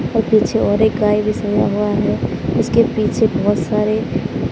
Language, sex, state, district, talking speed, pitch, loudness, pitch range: Hindi, male, Odisha, Sambalpur, 175 wpm, 210 Hz, -16 LUFS, 210-215 Hz